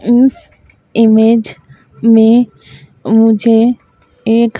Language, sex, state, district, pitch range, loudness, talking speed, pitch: Hindi, female, Madhya Pradesh, Dhar, 220-230 Hz, -10 LUFS, 65 wpm, 225 Hz